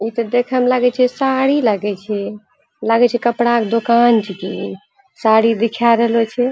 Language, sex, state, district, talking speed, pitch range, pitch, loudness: Angika, female, Bihar, Purnia, 175 wpm, 220-245 Hz, 235 Hz, -16 LUFS